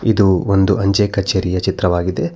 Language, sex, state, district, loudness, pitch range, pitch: Kannada, male, Karnataka, Bangalore, -16 LUFS, 90-100 Hz, 95 Hz